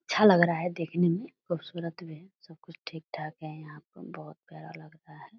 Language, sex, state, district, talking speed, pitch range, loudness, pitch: Hindi, female, Bihar, Purnia, 225 wpm, 155-175 Hz, -28 LUFS, 165 Hz